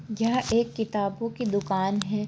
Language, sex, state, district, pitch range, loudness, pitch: Hindi, female, Jharkhand, Jamtara, 200-230 Hz, -27 LUFS, 215 Hz